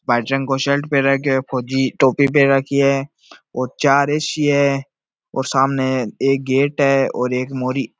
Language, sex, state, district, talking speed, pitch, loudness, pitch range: Marwari, male, Rajasthan, Nagaur, 185 wpm, 135 Hz, -18 LUFS, 130-140 Hz